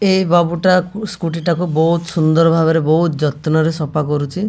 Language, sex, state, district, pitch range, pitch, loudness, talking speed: Odia, male, Odisha, Malkangiri, 160-180 Hz, 165 Hz, -15 LUFS, 175 wpm